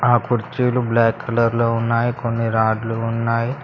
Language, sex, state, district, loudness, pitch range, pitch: Telugu, male, Telangana, Mahabubabad, -19 LUFS, 115-120 Hz, 115 Hz